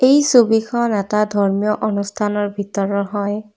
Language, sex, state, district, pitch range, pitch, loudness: Assamese, female, Assam, Kamrup Metropolitan, 200-220 Hz, 210 Hz, -18 LUFS